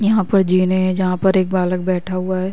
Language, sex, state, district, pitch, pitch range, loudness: Hindi, female, Uttar Pradesh, Varanasi, 185 Hz, 185-190 Hz, -17 LUFS